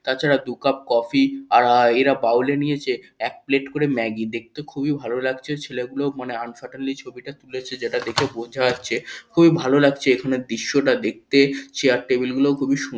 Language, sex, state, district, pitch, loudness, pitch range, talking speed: Bengali, male, West Bengal, North 24 Parganas, 135 Hz, -21 LUFS, 125-140 Hz, 160 wpm